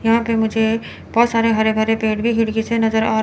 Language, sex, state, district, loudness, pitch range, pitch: Hindi, female, Chandigarh, Chandigarh, -18 LUFS, 220-230 Hz, 225 Hz